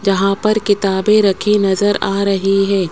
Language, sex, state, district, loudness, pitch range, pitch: Hindi, male, Rajasthan, Jaipur, -14 LUFS, 195-205 Hz, 195 Hz